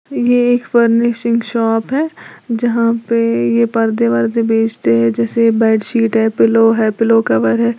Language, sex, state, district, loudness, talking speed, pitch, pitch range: Hindi, female, Uttar Pradesh, Lalitpur, -14 LUFS, 155 wpm, 225 Hz, 220-235 Hz